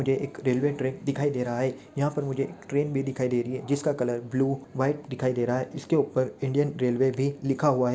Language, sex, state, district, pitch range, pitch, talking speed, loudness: Hindi, male, Andhra Pradesh, Anantapur, 130-145 Hz, 135 Hz, 265 wpm, -27 LUFS